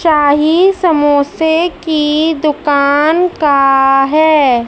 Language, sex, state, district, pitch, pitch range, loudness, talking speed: Hindi, female, Madhya Pradesh, Dhar, 300 Hz, 285-320 Hz, -11 LUFS, 75 wpm